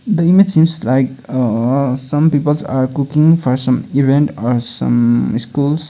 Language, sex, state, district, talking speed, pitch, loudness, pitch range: English, male, Sikkim, Gangtok, 150 wpm, 135 Hz, -14 LUFS, 125-150 Hz